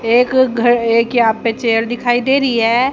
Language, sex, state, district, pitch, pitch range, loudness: Hindi, female, Haryana, Rohtak, 240 Hz, 230-245 Hz, -14 LUFS